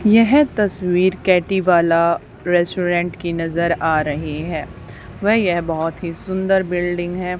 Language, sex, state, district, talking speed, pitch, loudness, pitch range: Hindi, female, Haryana, Charkhi Dadri, 140 wpm, 175 Hz, -18 LUFS, 170-190 Hz